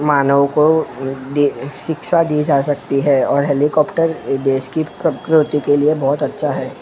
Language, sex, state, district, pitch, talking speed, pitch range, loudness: Hindi, male, Maharashtra, Mumbai Suburban, 145 Hz, 160 wpm, 140-155 Hz, -16 LUFS